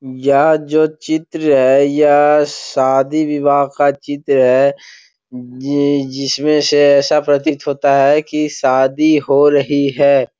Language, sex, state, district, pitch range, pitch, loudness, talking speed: Hindi, male, Bihar, Gopalganj, 135-150 Hz, 145 Hz, -13 LUFS, 125 wpm